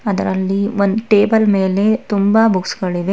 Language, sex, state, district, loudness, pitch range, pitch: Kannada, female, Karnataka, Bangalore, -15 LUFS, 190-215 Hz, 200 Hz